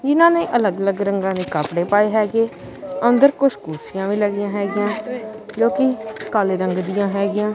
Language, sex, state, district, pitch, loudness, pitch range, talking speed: Punjabi, male, Punjab, Kapurthala, 210 Hz, -19 LUFS, 195-230 Hz, 165 wpm